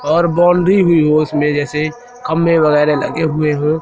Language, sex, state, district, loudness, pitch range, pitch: Hindi, male, Madhya Pradesh, Katni, -14 LUFS, 150-170 Hz, 155 Hz